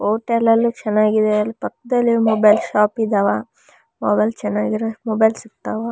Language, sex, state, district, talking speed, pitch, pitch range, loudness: Kannada, female, Karnataka, Raichur, 120 wpm, 220 Hz, 210-230 Hz, -18 LUFS